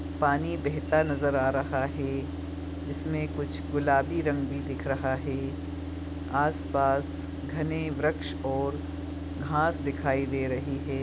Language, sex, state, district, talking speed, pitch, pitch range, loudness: Hindi, male, Chhattisgarh, Bastar, 130 wpm, 135 Hz, 95-140 Hz, -29 LUFS